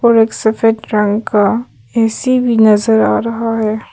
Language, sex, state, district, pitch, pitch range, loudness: Hindi, female, Arunachal Pradesh, Papum Pare, 225 Hz, 215-230 Hz, -13 LUFS